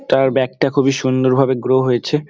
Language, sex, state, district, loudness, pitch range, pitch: Bengali, male, West Bengal, Dakshin Dinajpur, -16 LUFS, 130-140 Hz, 135 Hz